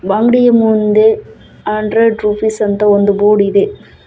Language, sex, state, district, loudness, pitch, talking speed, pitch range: Kannada, female, Karnataka, Bangalore, -12 LUFS, 210 Hz, 120 wpm, 205-220 Hz